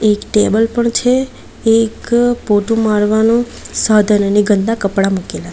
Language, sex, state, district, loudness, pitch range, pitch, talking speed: Gujarati, female, Gujarat, Valsad, -14 LUFS, 205-230 Hz, 215 Hz, 140 wpm